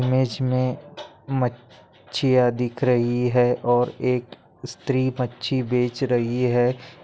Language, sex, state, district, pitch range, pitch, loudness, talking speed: Hindi, male, Maharashtra, Chandrapur, 120-130 Hz, 125 Hz, -22 LUFS, 120 wpm